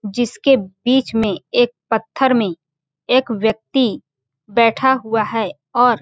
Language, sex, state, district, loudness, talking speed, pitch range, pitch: Hindi, female, Chhattisgarh, Balrampur, -17 LUFS, 130 wpm, 205-245 Hz, 225 Hz